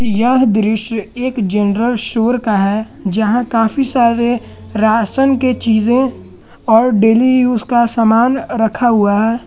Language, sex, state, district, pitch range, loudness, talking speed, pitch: Hindi, male, Jharkhand, Garhwa, 220-245 Hz, -14 LUFS, 135 wpm, 230 Hz